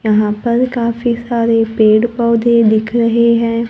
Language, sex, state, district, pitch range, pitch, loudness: Hindi, female, Maharashtra, Gondia, 225-235 Hz, 230 Hz, -13 LUFS